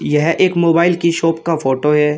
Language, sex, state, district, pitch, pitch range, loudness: Hindi, male, Uttar Pradesh, Shamli, 165 Hz, 150-170 Hz, -15 LUFS